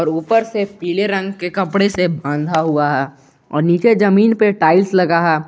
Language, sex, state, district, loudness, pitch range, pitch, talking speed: Hindi, male, Jharkhand, Garhwa, -15 LUFS, 160-200 Hz, 180 Hz, 195 wpm